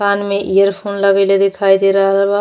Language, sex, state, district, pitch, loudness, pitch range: Bhojpuri, female, Uttar Pradesh, Deoria, 195 Hz, -13 LUFS, 195-200 Hz